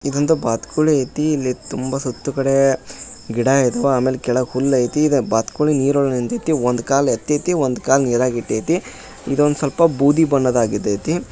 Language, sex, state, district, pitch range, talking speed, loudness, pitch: Kannada, male, Karnataka, Dharwad, 125-145 Hz, 150 wpm, -18 LUFS, 135 Hz